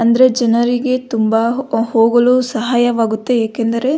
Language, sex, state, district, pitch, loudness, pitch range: Kannada, female, Karnataka, Belgaum, 240 Hz, -14 LUFS, 230-250 Hz